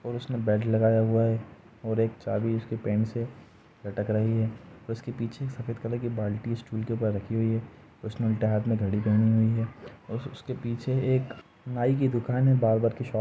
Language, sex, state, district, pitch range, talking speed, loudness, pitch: Hindi, male, Uttar Pradesh, Jalaun, 110-120 Hz, 215 wpm, -28 LUFS, 115 Hz